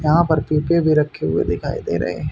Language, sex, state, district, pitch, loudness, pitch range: Hindi, male, Haryana, Rohtak, 155 Hz, -19 LUFS, 150-160 Hz